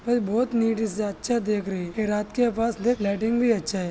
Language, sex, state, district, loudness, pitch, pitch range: Hindi, male, Maharashtra, Sindhudurg, -25 LUFS, 220 Hz, 205-235 Hz